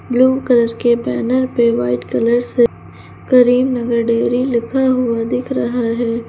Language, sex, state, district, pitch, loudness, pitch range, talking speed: Hindi, female, Uttar Pradesh, Lucknow, 240 Hz, -15 LUFS, 235-255 Hz, 145 wpm